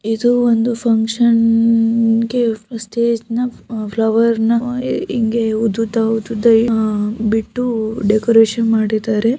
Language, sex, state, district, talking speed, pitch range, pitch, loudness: Kannada, female, Karnataka, Shimoga, 100 wpm, 220-235 Hz, 225 Hz, -16 LUFS